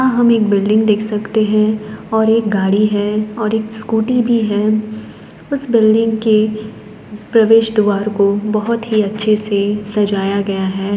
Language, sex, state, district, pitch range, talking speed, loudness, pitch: Hindi, female, Uttar Pradesh, Jalaun, 210-220 Hz, 155 wpm, -15 LUFS, 215 Hz